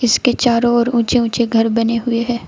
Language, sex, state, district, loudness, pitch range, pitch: Hindi, female, Uttar Pradesh, Saharanpur, -15 LUFS, 230-240 Hz, 235 Hz